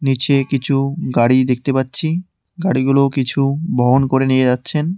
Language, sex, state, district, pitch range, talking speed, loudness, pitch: Bengali, male, West Bengal, Cooch Behar, 130-145 Hz, 130 wpm, -16 LUFS, 135 Hz